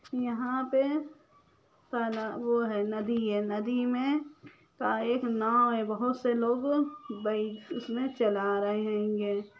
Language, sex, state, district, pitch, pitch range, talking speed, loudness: Magahi, female, Bihar, Lakhisarai, 235 Hz, 215-255 Hz, 130 wpm, -30 LUFS